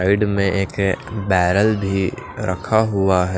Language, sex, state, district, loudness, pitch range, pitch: Hindi, male, Maharashtra, Washim, -19 LUFS, 95-105 Hz, 100 Hz